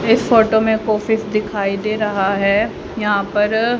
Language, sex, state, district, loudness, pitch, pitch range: Hindi, female, Haryana, Jhajjar, -17 LUFS, 215 Hz, 205-220 Hz